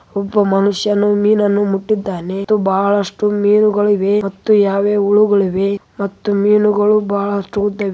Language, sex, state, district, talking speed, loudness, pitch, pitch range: Kannada, female, Karnataka, Raichur, 120 wpm, -15 LUFS, 205 Hz, 200-210 Hz